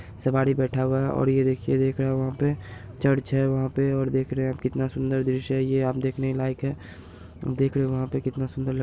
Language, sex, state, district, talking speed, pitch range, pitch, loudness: Hindi, male, Bihar, Saharsa, 260 wpm, 130-135 Hz, 130 Hz, -25 LUFS